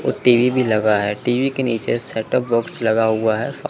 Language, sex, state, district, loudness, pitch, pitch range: Hindi, male, Chandigarh, Chandigarh, -18 LUFS, 115 Hz, 110-125 Hz